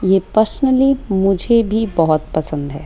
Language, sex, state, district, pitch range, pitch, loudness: Hindi, female, Rajasthan, Jaipur, 155-230 Hz, 195 Hz, -16 LUFS